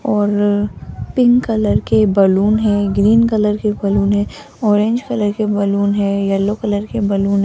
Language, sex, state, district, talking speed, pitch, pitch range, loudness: Hindi, female, Rajasthan, Jaipur, 170 wpm, 205 Hz, 200-215 Hz, -15 LUFS